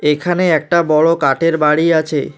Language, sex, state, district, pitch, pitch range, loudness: Bengali, male, West Bengal, Alipurduar, 160 Hz, 150-165 Hz, -14 LUFS